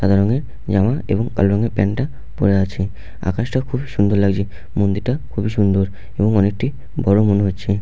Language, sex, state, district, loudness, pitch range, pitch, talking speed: Bengali, male, West Bengal, Jalpaiguri, -19 LUFS, 100-115 Hz, 100 Hz, 170 wpm